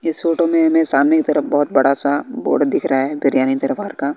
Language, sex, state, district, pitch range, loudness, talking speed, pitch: Hindi, female, Bihar, West Champaran, 140-165 Hz, -17 LUFS, 230 wpm, 150 Hz